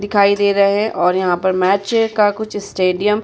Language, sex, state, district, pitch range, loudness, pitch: Hindi, female, Uttar Pradesh, Muzaffarnagar, 190-210 Hz, -16 LUFS, 200 Hz